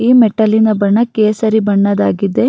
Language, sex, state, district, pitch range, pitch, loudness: Kannada, female, Karnataka, Raichur, 205-225 Hz, 220 Hz, -12 LUFS